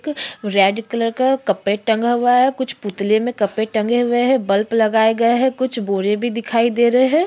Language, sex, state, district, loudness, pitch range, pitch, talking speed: Hindi, female, Uttarakhand, Tehri Garhwal, -17 LUFS, 215-250 Hz, 230 Hz, 215 wpm